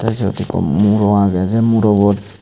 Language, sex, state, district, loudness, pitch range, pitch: Chakma, male, Tripura, Unakoti, -14 LUFS, 100-110 Hz, 105 Hz